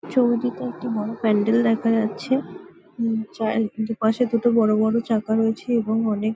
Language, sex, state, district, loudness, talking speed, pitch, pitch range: Bengali, female, West Bengal, Jalpaiguri, -22 LUFS, 150 wpm, 225 Hz, 220-235 Hz